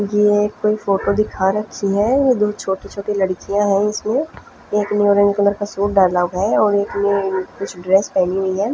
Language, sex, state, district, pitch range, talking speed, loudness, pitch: Hindi, female, Punjab, Fazilka, 195-210 Hz, 205 wpm, -18 LUFS, 200 Hz